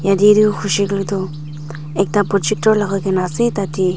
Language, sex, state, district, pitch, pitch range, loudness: Nagamese, female, Nagaland, Dimapur, 195 Hz, 185-205 Hz, -16 LUFS